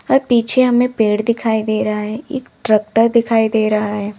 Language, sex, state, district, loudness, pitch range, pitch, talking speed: Hindi, female, Uttar Pradesh, Lalitpur, -15 LUFS, 215-240 Hz, 225 Hz, 200 wpm